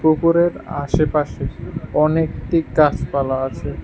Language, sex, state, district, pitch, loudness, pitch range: Bengali, male, Tripura, West Tripura, 150 Hz, -19 LUFS, 135-160 Hz